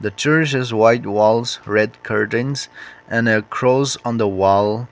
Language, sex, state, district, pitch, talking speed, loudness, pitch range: English, male, Nagaland, Kohima, 115 Hz, 160 wpm, -17 LUFS, 105-125 Hz